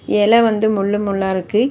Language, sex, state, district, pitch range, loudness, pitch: Tamil, female, Tamil Nadu, Chennai, 195-220 Hz, -16 LUFS, 210 Hz